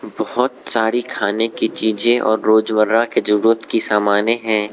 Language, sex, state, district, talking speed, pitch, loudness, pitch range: Hindi, male, Arunachal Pradesh, Lower Dibang Valley, 150 wpm, 110 Hz, -17 LUFS, 110-115 Hz